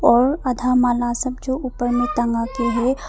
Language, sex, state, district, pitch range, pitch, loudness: Hindi, female, Arunachal Pradesh, Papum Pare, 240-260 Hz, 250 Hz, -20 LUFS